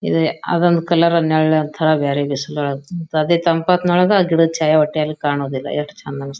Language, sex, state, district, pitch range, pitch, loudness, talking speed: Kannada, female, Karnataka, Bijapur, 150-170 Hz, 155 Hz, -17 LUFS, 160 wpm